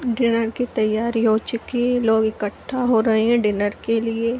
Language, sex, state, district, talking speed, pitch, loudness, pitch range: Hindi, female, Jharkhand, Jamtara, 190 wpm, 230 Hz, -20 LUFS, 220-240 Hz